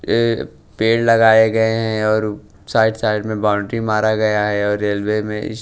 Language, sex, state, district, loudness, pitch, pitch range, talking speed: Hindi, male, Bihar, West Champaran, -17 LUFS, 110 Hz, 105-110 Hz, 180 wpm